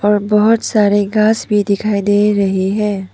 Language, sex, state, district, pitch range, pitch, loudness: Hindi, female, Arunachal Pradesh, Papum Pare, 200-210 Hz, 205 Hz, -14 LUFS